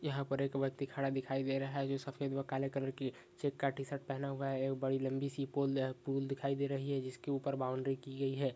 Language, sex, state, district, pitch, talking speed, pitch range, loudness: Hindi, male, West Bengal, Paschim Medinipur, 135 Hz, 265 wpm, 135-140 Hz, -38 LUFS